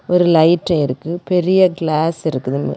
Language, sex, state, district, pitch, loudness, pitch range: Tamil, female, Tamil Nadu, Kanyakumari, 165 Hz, -16 LUFS, 155-180 Hz